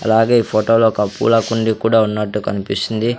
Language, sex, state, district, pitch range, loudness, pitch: Telugu, male, Andhra Pradesh, Sri Satya Sai, 105-115 Hz, -16 LUFS, 110 Hz